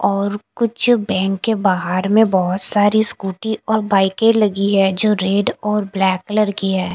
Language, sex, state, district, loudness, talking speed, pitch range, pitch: Hindi, female, Punjab, Kapurthala, -16 LUFS, 175 wpm, 190-215 Hz, 200 Hz